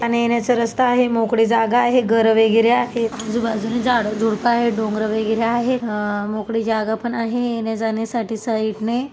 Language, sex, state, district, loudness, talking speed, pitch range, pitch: Marathi, female, Maharashtra, Dhule, -19 LUFS, 165 wpm, 220-235 Hz, 230 Hz